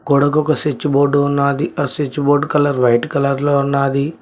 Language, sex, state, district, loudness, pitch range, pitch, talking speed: Telugu, male, Telangana, Mahabubabad, -16 LUFS, 140-145 Hz, 140 Hz, 185 wpm